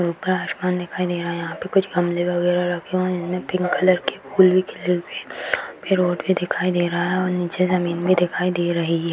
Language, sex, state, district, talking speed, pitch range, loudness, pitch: Hindi, female, Bihar, Purnia, 230 wpm, 175-185 Hz, -21 LUFS, 180 Hz